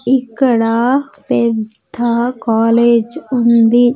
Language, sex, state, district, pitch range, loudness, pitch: Telugu, female, Andhra Pradesh, Sri Satya Sai, 230-255 Hz, -14 LUFS, 235 Hz